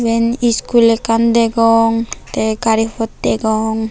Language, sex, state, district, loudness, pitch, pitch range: Chakma, female, Tripura, Unakoti, -15 LUFS, 225 Hz, 220-230 Hz